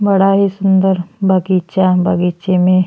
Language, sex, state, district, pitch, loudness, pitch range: Bhojpuri, female, Uttar Pradesh, Ghazipur, 185 Hz, -14 LUFS, 180-195 Hz